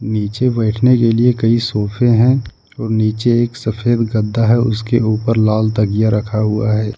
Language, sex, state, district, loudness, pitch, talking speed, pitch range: Hindi, male, Jharkhand, Ranchi, -15 LUFS, 110 Hz, 170 wpm, 110-120 Hz